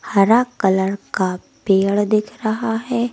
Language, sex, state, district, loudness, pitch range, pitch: Hindi, female, Uttar Pradesh, Lucknow, -18 LUFS, 195-230 Hz, 215 Hz